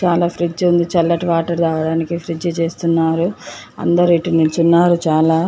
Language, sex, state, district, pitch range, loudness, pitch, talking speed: Telugu, female, Andhra Pradesh, Chittoor, 165-175 Hz, -16 LUFS, 170 Hz, 130 wpm